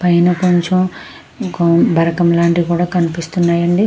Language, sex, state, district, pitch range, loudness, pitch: Telugu, female, Andhra Pradesh, Krishna, 170-180 Hz, -14 LUFS, 175 Hz